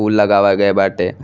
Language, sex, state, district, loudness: Bhojpuri, male, Uttar Pradesh, Deoria, -14 LUFS